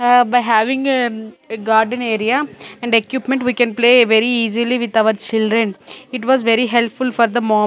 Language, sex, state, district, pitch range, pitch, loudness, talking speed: English, female, Chandigarh, Chandigarh, 220-245 Hz, 235 Hz, -15 LUFS, 190 wpm